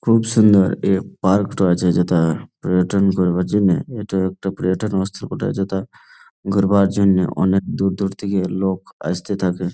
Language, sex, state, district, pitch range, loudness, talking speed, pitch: Bengali, male, West Bengal, Jalpaiguri, 90-100 Hz, -18 LUFS, 150 wpm, 95 Hz